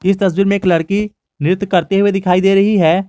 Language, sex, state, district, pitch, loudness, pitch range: Hindi, male, Jharkhand, Garhwa, 195 Hz, -14 LUFS, 180-200 Hz